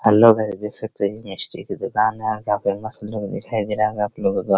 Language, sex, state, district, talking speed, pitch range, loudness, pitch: Hindi, male, Bihar, Araria, 290 wpm, 105-110 Hz, -21 LUFS, 105 Hz